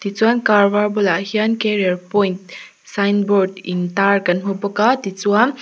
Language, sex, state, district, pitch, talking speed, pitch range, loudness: Mizo, female, Mizoram, Aizawl, 200 Hz, 150 wpm, 190-210 Hz, -17 LUFS